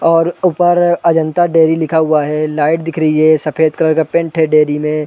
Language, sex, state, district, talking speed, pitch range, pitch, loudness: Hindi, male, Chhattisgarh, Raigarh, 215 wpm, 155-165 Hz, 160 Hz, -13 LUFS